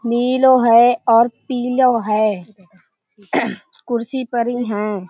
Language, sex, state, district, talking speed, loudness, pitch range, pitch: Hindi, female, Uttar Pradesh, Budaun, 80 wpm, -16 LUFS, 210-245 Hz, 235 Hz